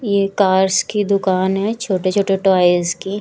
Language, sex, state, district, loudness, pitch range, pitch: Hindi, female, Chhattisgarh, Raipur, -16 LUFS, 185-200 Hz, 195 Hz